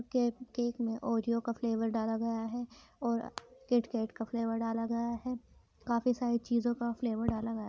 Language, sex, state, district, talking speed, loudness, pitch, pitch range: Hindi, female, Uttar Pradesh, Muzaffarnagar, 185 wpm, -34 LUFS, 235 Hz, 230-240 Hz